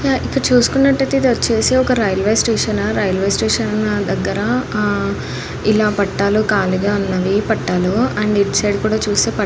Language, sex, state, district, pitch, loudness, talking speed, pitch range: Telugu, female, Andhra Pradesh, Anantapur, 210 Hz, -16 LUFS, 145 wpm, 200-225 Hz